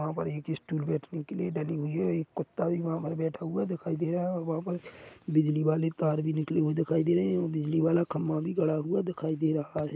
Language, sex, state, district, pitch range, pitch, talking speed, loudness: Hindi, male, Chhattisgarh, Korba, 155-170 Hz, 160 Hz, 270 wpm, -30 LUFS